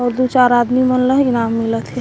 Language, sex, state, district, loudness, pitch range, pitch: Chhattisgarhi, female, Chhattisgarh, Korba, -15 LUFS, 240-255 Hz, 250 Hz